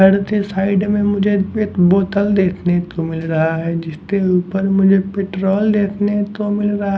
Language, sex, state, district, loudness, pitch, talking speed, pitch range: Hindi, male, Haryana, Jhajjar, -17 LUFS, 195 Hz, 165 wpm, 180-205 Hz